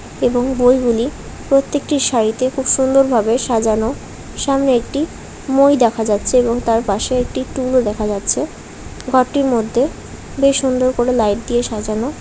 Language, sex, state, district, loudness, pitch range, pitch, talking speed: Bengali, female, West Bengal, Dakshin Dinajpur, -16 LUFS, 230-265 Hz, 250 Hz, 140 wpm